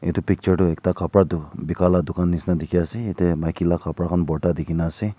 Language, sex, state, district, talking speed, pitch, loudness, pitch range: Nagamese, male, Nagaland, Kohima, 245 wpm, 85 Hz, -22 LUFS, 85-90 Hz